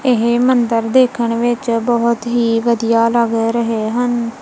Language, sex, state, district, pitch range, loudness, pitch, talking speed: Punjabi, female, Punjab, Kapurthala, 230-240 Hz, -15 LUFS, 235 Hz, 135 wpm